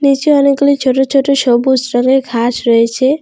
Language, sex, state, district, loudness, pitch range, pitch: Bengali, female, West Bengal, Alipurduar, -12 LUFS, 245-280 Hz, 265 Hz